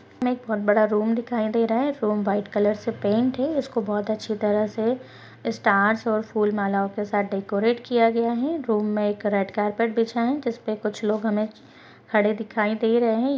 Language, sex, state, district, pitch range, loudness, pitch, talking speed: Hindi, female, Goa, North and South Goa, 210-235 Hz, -24 LUFS, 215 Hz, 200 wpm